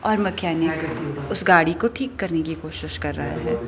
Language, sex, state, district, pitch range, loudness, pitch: Hindi, female, Himachal Pradesh, Shimla, 130-190 Hz, -23 LUFS, 160 Hz